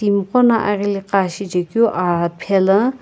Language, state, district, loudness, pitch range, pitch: Sumi, Nagaland, Kohima, -17 LUFS, 185-220 Hz, 200 Hz